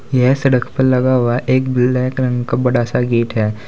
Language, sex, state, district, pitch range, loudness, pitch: Hindi, male, Uttar Pradesh, Saharanpur, 120-130 Hz, -15 LUFS, 125 Hz